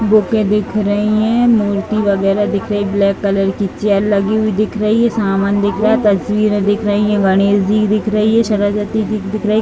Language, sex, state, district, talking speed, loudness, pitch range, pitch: Hindi, female, Uttar Pradesh, Varanasi, 235 wpm, -14 LUFS, 200-215 Hz, 210 Hz